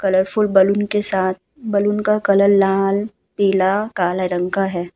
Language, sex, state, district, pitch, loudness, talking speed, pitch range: Hindi, female, Uttar Pradesh, Muzaffarnagar, 195 Hz, -17 LUFS, 155 wpm, 185-205 Hz